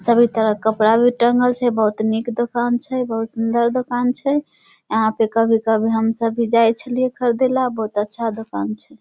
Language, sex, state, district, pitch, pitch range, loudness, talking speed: Maithili, female, Bihar, Samastipur, 230 Hz, 220-245 Hz, -18 LUFS, 185 wpm